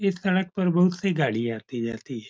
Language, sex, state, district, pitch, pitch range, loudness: Hindi, male, Uttar Pradesh, Etah, 165 Hz, 115-185 Hz, -25 LUFS